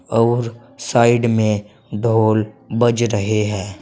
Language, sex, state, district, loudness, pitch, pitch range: Hindi, male, Uttar Pradesh, Saharanpur, -17 LUFS, 110 Hz, 105-120 Hz